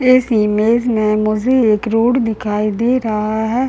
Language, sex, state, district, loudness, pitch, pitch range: Hindi, male, Bihar, Muzaffarpur, -15 LUFS, 220 Hz, 215-245 Hz